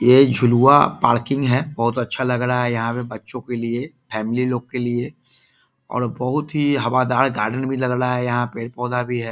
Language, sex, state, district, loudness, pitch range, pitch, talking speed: Hindi, male, Bihar, East Champaran, -20 LUFS, 120-130 Hz, 125 Hz, 210 wpm